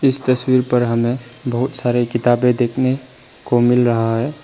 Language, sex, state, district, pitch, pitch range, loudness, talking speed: Hindi, male, Arunachal Pradesh, Papum Pare, 125 Hz, 120-130 Hz, -17 LUFS, 160 wpm